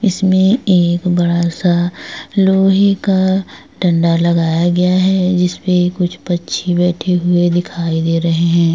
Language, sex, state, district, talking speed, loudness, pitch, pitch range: Hindi, female, Bihar, Vaishali, 135 wpm, -14 LUFS, 175 Hz, 170-190 Hz